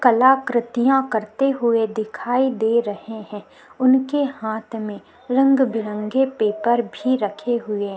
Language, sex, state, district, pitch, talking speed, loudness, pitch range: Hindi, female, Uttarakhand, Tehri Garhwal, 235 Hz, 130 wpm, -20 LUFS, 215-260 Hz